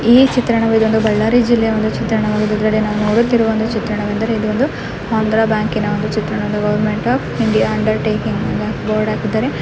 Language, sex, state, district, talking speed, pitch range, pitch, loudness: Kannada, female, Karnataka, Bellary, 135 wpm, 210-225 Hz, 220 Hz, -16 LUFS